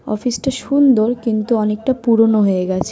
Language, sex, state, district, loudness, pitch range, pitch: Bengali, female, West Bengal, North 24 Parganas, -16 LUFS, 215-255 Hz, 225 Hz